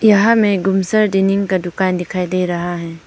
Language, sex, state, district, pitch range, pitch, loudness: Hindi, female, Arunachal Pradesh, Papum Pare, 175-200 Hz, 190 Hz, -16 LUFS